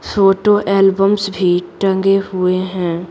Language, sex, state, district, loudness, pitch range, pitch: Hindi, female, Bihar, Patna, -15 LUFS, 180-195 Hz, 195 Hz